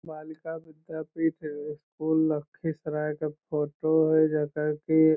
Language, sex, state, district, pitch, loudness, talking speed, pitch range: Magahi, male, Bihar, Lakhisarai, 155 Hz, -28 LUFS, 150 wpm, 150-160 Hz